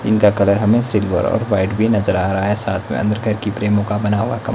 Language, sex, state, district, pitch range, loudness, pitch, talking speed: Hindi, male, Himachal Pradesh, Shimla, 100-110 Hz, -17 LUFS, 105 Hz, 225 wpm